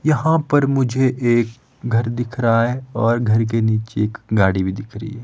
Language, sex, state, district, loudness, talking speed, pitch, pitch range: Hindi, male, Himachal Pradesh, Shimla, -19 LUFS, 205 wpm, 115 Hz, 110-130 Hz